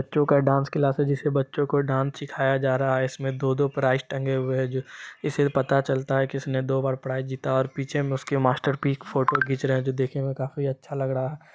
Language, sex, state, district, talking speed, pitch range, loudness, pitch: Hindi, male, Bihar, Supaul, 260 wpm, 130-140 Hz, -25 LUFS, 135 Hz